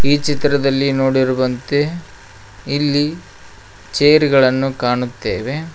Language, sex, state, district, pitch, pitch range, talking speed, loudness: Kannada, male, Karnataka, Koppal, 135 Hz, 125-145 Hz, 75 wpm, -16 LUFS